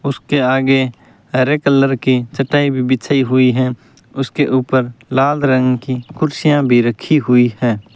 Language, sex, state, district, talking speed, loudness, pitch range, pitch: Hindi, male, Rajasthan, Bikaner, 150 wpm, -15 LUFS, 125-140 Hz, 130 Hz